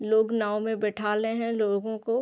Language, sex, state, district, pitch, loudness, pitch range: Hindi, female, Jharkhand, Sahebganj, 220 Hz, -27 LUFS, 210-225 Hz